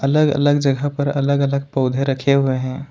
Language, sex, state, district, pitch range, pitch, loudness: Hindi, male, Jharkhand, Ranchi, 135-145 Hz, 140 Hz, -18 LUFS